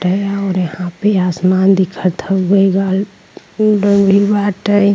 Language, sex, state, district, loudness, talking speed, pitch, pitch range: Bhojpuri, female, Uttar Pradesh, Ghazipur, -14 LUFS, 85 wpm, 195 Hz, 185-200 Hz